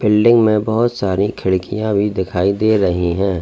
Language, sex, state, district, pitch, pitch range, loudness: Hindi, male, Uttar Pradesh, Lalitpur, 105 Hz, 95-110 Hz, -16 LUFS